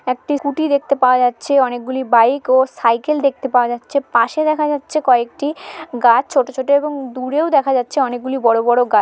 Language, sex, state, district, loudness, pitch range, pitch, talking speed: Bengali, female, West Bengal, Malda, -16 LUFS, 245-285 Hz, 265 Hz, 180 wpm